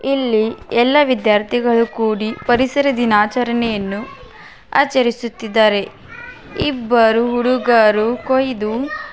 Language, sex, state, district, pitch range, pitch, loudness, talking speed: Kannada, female, Karnataka, Belgaum, 220-260 Hz, 235 Hz, -16 LUFS, 65 wpm